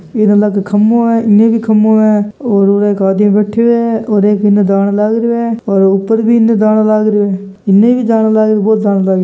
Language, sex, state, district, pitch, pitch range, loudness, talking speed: Hindi, male, Rajasthan, Churu, 215 Hz, 205-225 Hz, -10 LUFS, 240 wpm